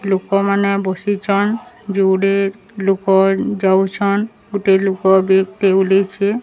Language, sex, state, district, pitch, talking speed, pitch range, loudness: Odia, male, Odisha, Sambalpur, 195 Hz, 105 wpm, 190-200 Hz, -16 LUFS